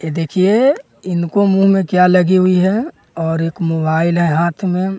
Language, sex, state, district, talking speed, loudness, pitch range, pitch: Hindi, male, Bihar, West Champaran, 180 wpm, -14 LUFS, 165-195 Hz, 180 Hz